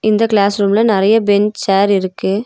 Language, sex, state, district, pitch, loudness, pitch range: Tamil, female, Tamil Nadu, Nilgiris, 205 Hz, -13 LUFS, 200-215 Hz